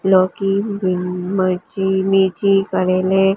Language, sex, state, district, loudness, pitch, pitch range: Hindi, female, Gujarat, Gandhinagar, -17 LUFS, 190 Hz, 185-195 Hz